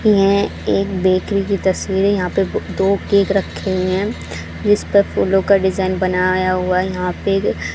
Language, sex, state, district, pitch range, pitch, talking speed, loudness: Hindi, female, Haryana, Charkhi Dadri, 185-200 Hz, 195 Hz, 185 wpm, -17 LUFS